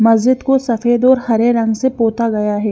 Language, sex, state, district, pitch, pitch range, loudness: Hindi, female, Haryana, Jhajjar, 230 Hz, 225-255 Hz, -14 LUFS